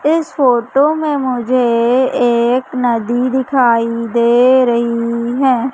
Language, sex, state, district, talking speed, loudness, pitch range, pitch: Hindi, female, Madhya Pradesh, Umaria, 105 wpm, -14 LUFS, 235-260 Hz, 250 Hz